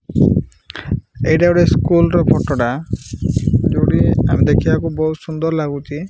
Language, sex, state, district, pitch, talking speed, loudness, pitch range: Odia, male, Odisha, Malkangiri, 155 Hz, 110 wpm, -16 LUFS, 145-165 Hz